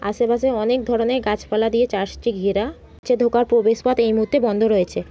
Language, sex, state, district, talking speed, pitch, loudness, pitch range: Bengali, female, West Bengal, Jhargram, 190 wpm, 230 Hz, -19 LUFS, 210-245 Hz